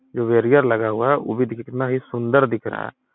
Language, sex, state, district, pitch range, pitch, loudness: Hindi, male, Uttar Pradesh, Etah, 115-130 Hz, 120 Hz, -20 LUFS